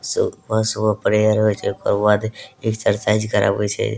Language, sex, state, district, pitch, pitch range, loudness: Maithili, male, Bihar, Madhepura, 110 Hz, 105-110 Hz, -19 LUFS